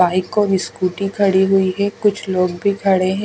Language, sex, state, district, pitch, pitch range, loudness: Hindi, female, Odisha, Khordha, 195 Hz, 185-200 Hz, -17 LUFS